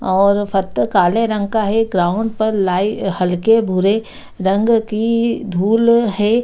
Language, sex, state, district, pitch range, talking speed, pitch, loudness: Hindi, female, Bihar, Gaya, 195-225 Hz, 140 wpm, 210 Hz, -16 LUFS